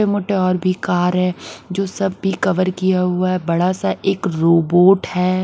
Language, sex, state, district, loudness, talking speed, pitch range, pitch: Hindi, female, Bihar, West Champaran, -17 LUFS, 200 wpm, 180-195 Hz, 185 Hz